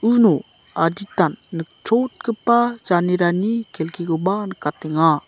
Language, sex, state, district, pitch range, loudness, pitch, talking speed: Garo, male, Meghalaya, South Garo Hills, 165-230 Hz, -20 LUFS, 185 Hz, 70 wpm